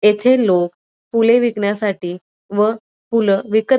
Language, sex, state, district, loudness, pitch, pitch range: Marathi, female, Maharashtra, Dhule, -17 LUFS, 210 Hz, 195-230 Hz